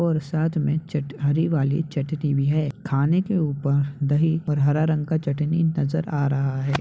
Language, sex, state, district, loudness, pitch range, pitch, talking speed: Hindi, male, Uttar Pradesh, Hamirpur, -23 LUFS, 140-160 Hz, 150 Hz, 195 wpm